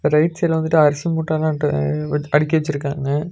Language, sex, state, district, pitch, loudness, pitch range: Tamil, male, Tamil Nadu, Nilgiris, 150 Hz, -19 LUFS, 145-160 Hz